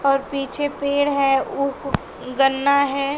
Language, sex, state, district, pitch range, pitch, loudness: Hindi, female, Uttar Pradesh, Shamli, 275-280 Hz, 275 Hz, -20 LUFS